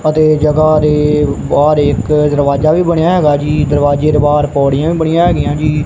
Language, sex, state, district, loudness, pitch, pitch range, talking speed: Punjabi, male, Punjab, Kapurthala, -11 LUFS, 150 Hz, 145-155 Hz, 185 wpm